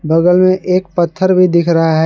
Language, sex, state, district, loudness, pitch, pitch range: Hindi, male, Jharkhand, Garhwa, -12 LUFS, 175 Hz, 165-185 Hz